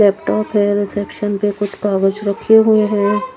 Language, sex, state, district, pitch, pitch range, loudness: Hindi, female, Haryana, Charkhi Dadri, 205 Hz, 200-210 Hz, -16 LUFS